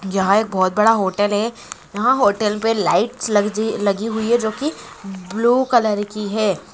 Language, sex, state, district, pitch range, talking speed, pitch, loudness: Hindi, female, Andhra Pradesh, Chittoor, 205-225 Hz, 180 wpm, 210 Hz, -18 LUFS